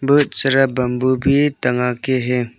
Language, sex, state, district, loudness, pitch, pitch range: Hindi, male, Arunachal Pradesh, Longding, -17 LUFS, 130 Hz, 125-140 Hz